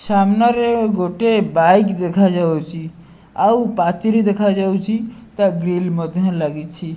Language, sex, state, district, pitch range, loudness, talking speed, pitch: Odia, male, Odisha, Nuapada, 170-215 Hz, -17 LUFS, 95 wpm, 190 Hz